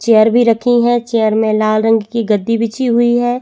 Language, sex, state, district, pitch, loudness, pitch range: Hindi, female, Chhattisgarh, Bastar, 230 Hz, -13 LUFS, 220-240 Hz